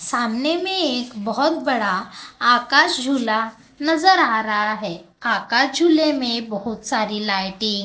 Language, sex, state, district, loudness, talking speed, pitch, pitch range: Hindi, female, Maharashtra, Gondia, -19 LUFS, 140 wpm, 240 Hz, 215-295 Hz